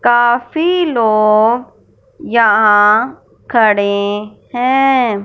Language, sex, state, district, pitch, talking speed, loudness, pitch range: Hindi, female, Punjab, Fazilka, 230 Hz, 55 wpm, -12 LUFS, 210-250 Hz